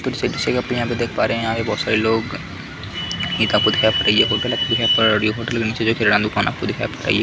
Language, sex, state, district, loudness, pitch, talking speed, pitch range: Hindi, male, Bihar, Kishanganj, -18 LUFS, 110 Hz, 240 wpm, 110-115 Hz